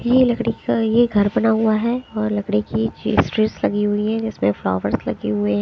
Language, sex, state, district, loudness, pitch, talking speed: Hindi, female, Himachal Pradesh, Shimla, -19 LUFS, 215 Hz, 215 wpm